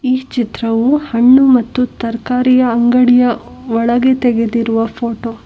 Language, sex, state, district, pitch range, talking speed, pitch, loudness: Kannada, female, Karnataka, Bangalore, 230-255 Hz, 110 wpm, 240 Hz, -13 LUFS